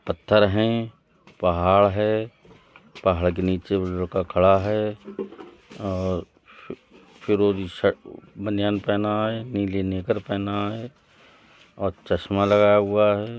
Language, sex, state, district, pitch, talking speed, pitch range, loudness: Hindi, male, Uttar Pradesh, Budaun, 100 Hz, 115 wpm, 95-105 Hz, -23 LUFS